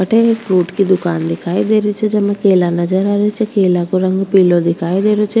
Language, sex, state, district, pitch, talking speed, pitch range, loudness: Rajasthani, female, Rajasthan, Churu, 190 Hz, 255 wpm, 180-210 Hz, -14 LUFS